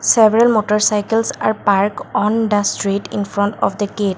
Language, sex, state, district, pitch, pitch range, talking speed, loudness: English, female, Assam, Kamrup Metropolitan, 210 Hz, 200-220 Hz, 170 wpm, -16 LUFS